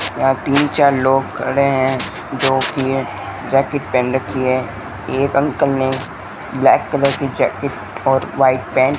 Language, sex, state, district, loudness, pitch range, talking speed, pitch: Hindi, male, Rajasthan, Bikaner, -17 LUFS, 130-140 Hz, 160 wpm, 135 Hz